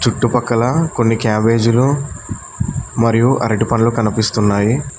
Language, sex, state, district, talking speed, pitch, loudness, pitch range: Telugu, male, Telangana, Mahabubabad, 85 wpm, 115 Hz, -15 LUFS, 110-125 Hz